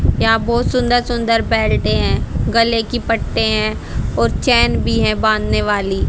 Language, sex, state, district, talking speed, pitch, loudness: Hindi, female, Haryana, Charkhi Dadri, 155 wpm, 225 Hz, -16 LUFS